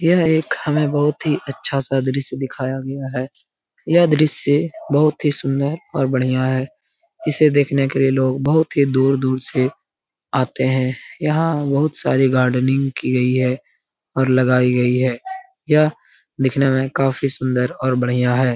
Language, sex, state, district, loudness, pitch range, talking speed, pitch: Hindi, male, Bihar, Lakhisarai, -18 LUFS, 130-150 Hz, 170 wpm, 135 Hz